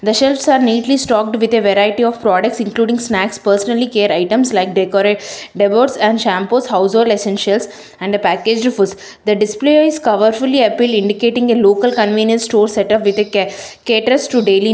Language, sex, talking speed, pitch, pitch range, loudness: English, female, 180 wpm, 215 Hz, 205-235 Hz, -14 LUFS